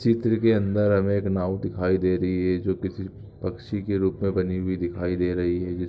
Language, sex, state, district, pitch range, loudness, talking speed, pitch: Hindi, male, Chhattisgarh, Raigarh, 90-100 Hz, -25 LUFS, 235 wpm, 95 Hz